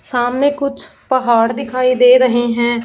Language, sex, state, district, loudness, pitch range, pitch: Hindi, female, Punjab, Fazilka, -14 LUFS, 240-260 Hz, 250 Hz